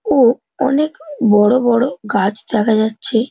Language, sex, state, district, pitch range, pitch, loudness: Bengali, male, West Bengal, North 24 Parganas, 220-270 Hz, 235 Hz, -15 LUFS